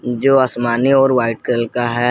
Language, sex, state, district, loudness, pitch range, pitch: Hindi, male, Jharkhand, Garhwa, -15 LUFS, 120-130 Hz, 120 Hz